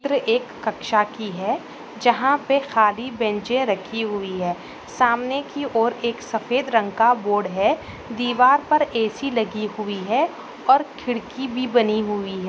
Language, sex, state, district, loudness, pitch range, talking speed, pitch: Hindi, female, Bihar, Bhagalpur, -21 LUFS, 210-255 Hz, 160 wpm, 235 Hz